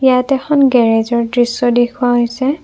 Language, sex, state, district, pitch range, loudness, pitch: Assamese, female, Assam, Kamrup Metropolitan, 240-265 Hz, -13 LUFS, 245 Hz